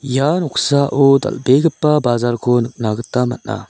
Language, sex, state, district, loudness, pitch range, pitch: Garo, male, Meghalaya, South Garo Hills, -16 LUFS, 120-140 Hz, 130 Hz